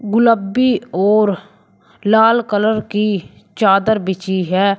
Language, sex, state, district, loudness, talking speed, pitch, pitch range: Hindi, male, Uttar Pradesh, Shamli, -15 LUFS, 100 wpm, 205 Hz, 195-220 Hz